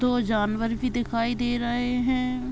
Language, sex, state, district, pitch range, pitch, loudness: Hindi, female, Jharkhand, Sahebganj, 230-250 Hz, 245 Hz, -26 LUFS